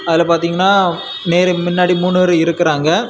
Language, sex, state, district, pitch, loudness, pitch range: Tamil, male, Tamil Nadu, Kanyakumari, 175 Hz, -14 LUFS, 170-180 Hz